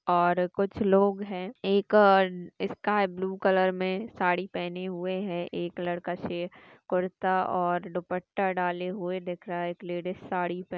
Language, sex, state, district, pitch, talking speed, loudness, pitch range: Hindi, female, Chhattisgarh, Sarguja, 185 Hz, 160 wpm, -28 LUFS, 175-190 Hz